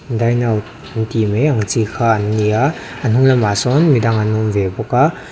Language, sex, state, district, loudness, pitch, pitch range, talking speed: Mizo, male, Mizoram, Aizawl, -15 LUFS, 115 Hz, 110-125 Hz, 215 wpm